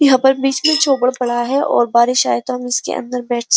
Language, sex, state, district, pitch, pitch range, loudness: Hindi, female, Uttar Pradesh, Jyotiba Phule Nagar, 250 Hz, 245-270 Hz, -15 LUFS